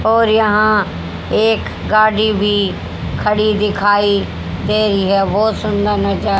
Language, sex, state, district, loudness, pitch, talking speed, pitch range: Hindi, female, Haryana, Jhajjar, -15 LUFS, 210 Hz, 120 wpm, 200-215 Hz